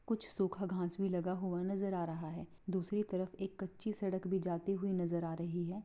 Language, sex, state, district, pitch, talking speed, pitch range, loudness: Hindi, female, Bihar, Bhagalpur, 185 Hz, 225 wpm, 175-195 Hz, -39 LUFS